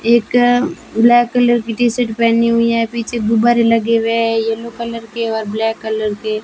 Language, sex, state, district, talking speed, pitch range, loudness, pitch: Hindi, female, Rajasthan, Bikaner, 185 wpm, 225-235 Hz, -15 LUFS, 230 Hz